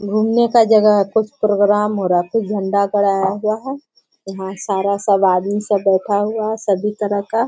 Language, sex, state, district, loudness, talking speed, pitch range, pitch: Hindi, female, Bihar, Bhagalpur, -17 LUFS, 210 wpm, 195-215 Hz, 205 Hz